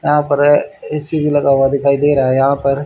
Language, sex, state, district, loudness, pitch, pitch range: Hindi, male, Haryana, Charkhi Dadri, -14 LUFS, 140 Hz, 140-145 Hz